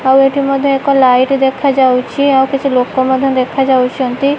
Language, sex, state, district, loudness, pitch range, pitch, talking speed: Odia, female, Odisha, Malkangiri, -12 LUFS, 260-275 Hz, 270 Hz, 150 wpm